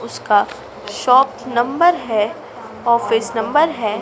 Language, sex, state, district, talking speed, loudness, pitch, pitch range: Hindi, female, Madhya Pradesh, Dhar, 105 wpm, -17 LUFS, 240 Hz, 225-270 Hz